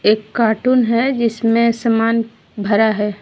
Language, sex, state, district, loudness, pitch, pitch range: Hindi, female, Jharkhand, Deoghar, -16 LUFS, 225 Hz, 215-235 Hz